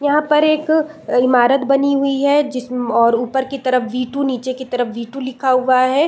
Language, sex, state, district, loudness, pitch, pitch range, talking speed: Hindi, female, Chhattisgarh, Raigarh, -17 LUFS, 260 Hz, 250-280 Hz, 215 wpm